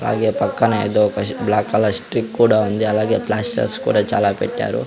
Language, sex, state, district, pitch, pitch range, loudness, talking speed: Telugu, male, Andhra Pradesh, Sri Satya Sai, 105 Hz, 105-110 Hz, -18 LUFS, 170 wpm